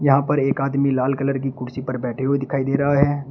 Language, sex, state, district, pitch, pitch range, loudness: Hindi, male, Uttar Pradesh, Shamli, 135 Hz, 135-140 Hz, -21 LUFS